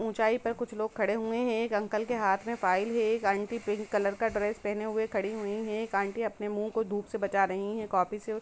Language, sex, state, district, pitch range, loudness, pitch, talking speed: Hindi, female, Jharkhand, Jamtara, 205-225 Hz, -31 LUFS, 215 Hz, 265 wpm